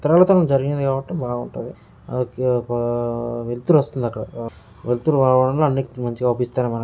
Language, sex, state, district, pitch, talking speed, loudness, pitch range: Telugu, male, Telangana, Karimnagar, 125 Hz, 130 wpm, -20 LUFS, 120-135 Hz